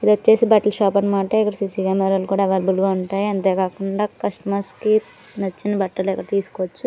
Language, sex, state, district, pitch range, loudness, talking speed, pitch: Telugu, female, Andhra Pradesh, Annamaya, 190-210 Hz, -20 LUFS, 165 wpm, 195 Hz